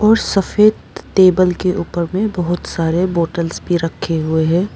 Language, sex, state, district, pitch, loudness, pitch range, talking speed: Hindi, female, Arunachal Pradesh, Papum Pare, 175 Hz, -16 LUFS, 170-190 Hz, 165 wpm